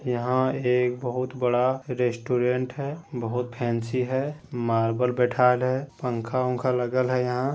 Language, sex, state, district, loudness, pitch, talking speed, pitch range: Hindi, male, Bihar, Madhepura, -25 LUFS, 125 Hz, 135 wpm, 125-130 Hz